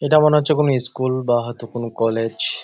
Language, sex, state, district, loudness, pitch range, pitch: Bengali, male, West Bengal, Jalpaiguri, -19 LUFS, 115-150 Hz, 125 Hz